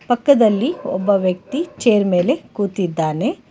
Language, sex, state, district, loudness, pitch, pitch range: Kannada, female, Karnataka, Bangalore, -18 LUFS, 210 Hz, 185-275 Hz